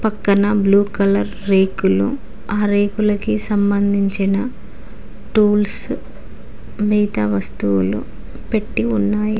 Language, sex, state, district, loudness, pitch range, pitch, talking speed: Telugu, female, Telangana, Mahabubabad, -17 LUFS, 195-210 Hz, 205 Hz, 75 wpm